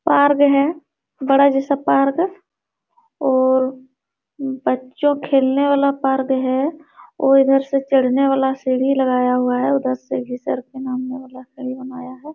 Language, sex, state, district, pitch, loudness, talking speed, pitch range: Hindi, male, Bihar, Supaul, 270 Hz, -18 LUFS, 110 wpm, 260-280 Hz